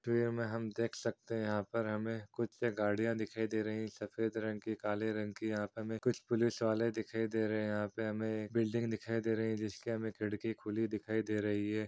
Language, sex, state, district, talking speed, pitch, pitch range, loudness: Hindi, male, Chhattisgarh, Kabirdham, 230 wpm, 110 Hz, 105-115 Hz, -37 LUFS